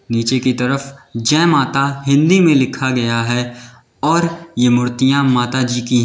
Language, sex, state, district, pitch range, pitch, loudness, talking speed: Hindi, male, Uttar Pradesh, Lalitpur, 120-140 Hz, 130 Hz, -15 LUFS, 170 wpm